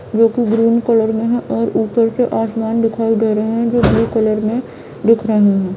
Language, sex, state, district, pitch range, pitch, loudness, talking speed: Hindi, female, Bihar, Saharsa, 220-230 Hz, 225 Hz, -15 LUFS, 220 wpm